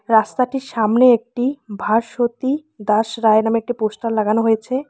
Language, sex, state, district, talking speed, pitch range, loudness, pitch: Bengali, female, West Bengal, Alipurduar, 135 wpm, 215-250 Hz, -18 LUFS, 230 Hz